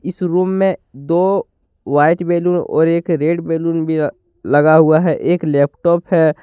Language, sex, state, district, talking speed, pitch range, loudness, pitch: Hindi, male, Jharkhand, Deoghar, 160 wpm, 155-175 Hz, -15 LUFS, 165 Hz